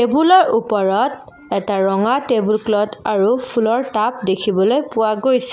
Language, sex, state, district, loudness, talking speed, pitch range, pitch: Assamese, female, Assam, Kamrup Metropolitan, -17 LUFS, 130 wpm, 205-250 Hz, 225 Hz